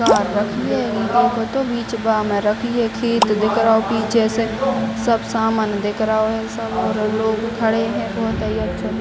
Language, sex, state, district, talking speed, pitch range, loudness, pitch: Hindi, female, Bihar, Gopalganj, 235 wpm, 220-230 Hz, -19 LUFS, 225 Hz